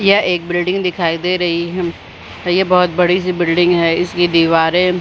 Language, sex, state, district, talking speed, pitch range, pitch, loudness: Hindi, female, Chhattisgarh, Bilaspur, 180 wpm, 170-180 Hz, 175 Hz, -15 LUFS